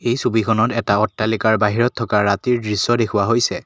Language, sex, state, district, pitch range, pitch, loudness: Assamese, male, Assam, Kamrup Metropolitan, 105-120 Hz, 110 Hz, -18 LUFS